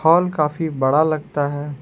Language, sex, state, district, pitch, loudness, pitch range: Hindi, male, Jharkhand, Palamu, 150 Hz, -19 LUFS, 145-160 Hz